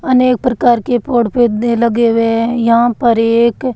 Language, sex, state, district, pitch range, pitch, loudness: Hindi, female, Rajasthan, Bikaner, 230-245 Hz, 235 Hz, -12 LUFS